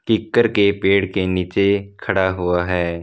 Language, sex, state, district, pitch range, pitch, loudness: Hindi, male, Punjab, Fazilka, 90-100 Hz, 95 Hz, -18 LUFS